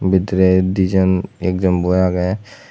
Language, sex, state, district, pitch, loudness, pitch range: Chakma, male, Tripura, West Tripura, 95 Hz, -16 LUFS, 90-95 Hz